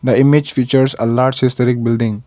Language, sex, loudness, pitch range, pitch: English, male, -14 LUFS, 115-130 Hz, 125 Hz